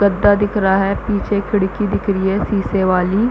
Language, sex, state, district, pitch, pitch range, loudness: Hindi, female, Chhattisgarh, Bastar, 200 Hz, 195-205 Hz, -17 LUFS